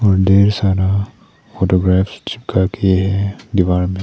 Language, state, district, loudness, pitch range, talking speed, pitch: Hindi, Arunachal Pradesh, Papum Pare, -16 LUFS, 95-100 Hz, 105 wpm, 95 Hz